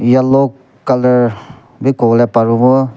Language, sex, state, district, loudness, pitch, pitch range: Nagamese, male, Nagaland, Kohima, -12 LUFS, 125 Hz, 120-130 Hz